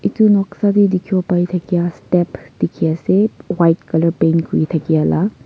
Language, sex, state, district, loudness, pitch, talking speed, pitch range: Nagamese, female, Nagaland, Kohima, -16 LUFS, 175 Hz, 130 wpm, 165-195 Hz